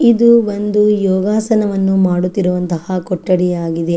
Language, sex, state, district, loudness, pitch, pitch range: Kannada, female, Karnataka, Chamarajanagar, -14 LUFS, 190 Hz, 180-210 Hz